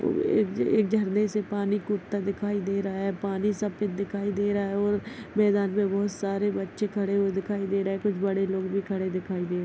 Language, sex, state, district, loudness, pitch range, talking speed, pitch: Hindi, female, Chhattisgarh, Bastar, -27 LUFS, 195-205 Hz, 225 wpm, 200 Hz